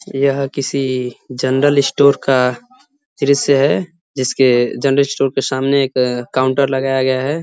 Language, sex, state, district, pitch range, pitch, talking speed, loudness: Hindi, male, Uttar Pradesh, Ghazipur, 130-140 Hz, 135 Hz, 135 wpm, -15 LUFS